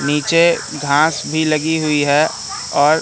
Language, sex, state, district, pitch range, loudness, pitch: Hindi, male, Madhya Pradesh, Katni, 145-160 Hz, -16 LUFS, 155 Hz